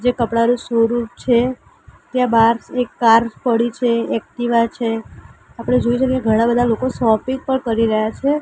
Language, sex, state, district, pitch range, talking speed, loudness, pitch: Gujarati, female, Gujarat, Gandhinagar, 230-250 Hz, 170 wpm, -17 LUFS, 235 Hz